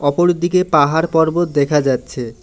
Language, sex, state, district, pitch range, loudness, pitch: Bengali, male, West Bengal, Alipurduar, 145-175 Hz, -15 LUFS, 160 Hz